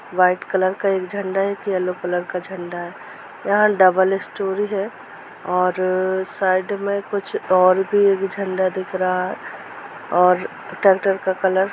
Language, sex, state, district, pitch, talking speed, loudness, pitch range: Hindi, female, Jharkhand, Jamtara, 190 Hz, 155 wpm, -20 LUFS, 185-195 Hz